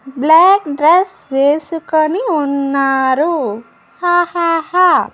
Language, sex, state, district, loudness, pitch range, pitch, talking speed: Telugu, female, Andhra Pradesh, Annamaya, -13 LUFS, 275-350 Hz, 315 Hz, 60 wpm